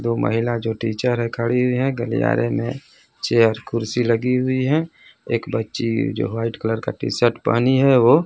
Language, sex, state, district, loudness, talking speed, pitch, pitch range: Hindi, male, Bihar, Kaimur, -20 LUFS, 195 wpm, 115 Hz, 115-125 Hz